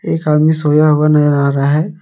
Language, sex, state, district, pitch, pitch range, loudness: Hindi, male, Jharkhand, Palamu, 150 Hz, 150-155 Hz, -12 LUFS